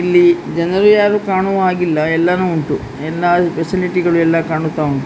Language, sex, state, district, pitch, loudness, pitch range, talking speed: Kannada, female, Karnataka, Dakshina Kannada, 175 Hz, -14 LUFS, 160-180 Hz, 165 wpm